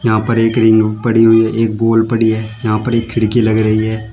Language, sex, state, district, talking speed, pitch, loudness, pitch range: Hindi, male, Uttar Pradesh, Shamli, 260 wpm, 115 Hz, -13 LUFS, 110-115 Hz